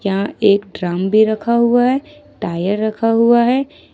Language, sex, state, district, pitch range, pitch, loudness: Hindi, female, Jharkhand, Ranchi, 200-240 Hz, 220 Hz, -16 LUFS